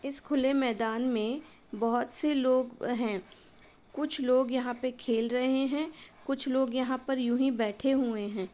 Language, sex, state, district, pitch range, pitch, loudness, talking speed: Hindi, female, Uttar Pradesh, Varanasi, 235-270 Hz, 255 Hz, -30 LUFS, 170 wpm